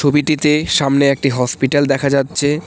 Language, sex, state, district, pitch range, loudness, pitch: Bengali, male, West Bengal, Cooch Behar, 140-150 Hz, -15 LUFS, 140 Hz